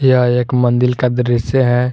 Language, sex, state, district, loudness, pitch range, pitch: Hindi, male, Jharkhand, Garhwa, -14 LUFS, 120-125 Hz, 125 Hz